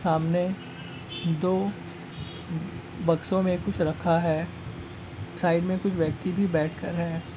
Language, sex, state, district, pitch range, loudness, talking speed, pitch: Hindi, male, Bihar, Sitamarhi, 160-185 Hz, -27 LUFS, 120 wpm, 170 Hz